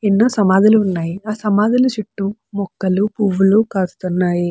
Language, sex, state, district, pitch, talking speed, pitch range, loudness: Telugu, female, Andhra Pradesh, Chittoor, 200 Hz, 120 wpm, 190-215 Hz, -16 LUFS